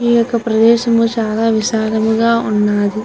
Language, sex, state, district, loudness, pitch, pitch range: Telugu, female, Andhra Pradesh, Guntur, -14 LUFS, 225 Hz, 220-230 Hz